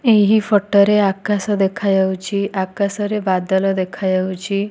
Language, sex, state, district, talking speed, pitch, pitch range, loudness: Odia, female, Odisha, Nuapada, 100 wpm, 200 Hz, 190-205 Hz, -17 LUFS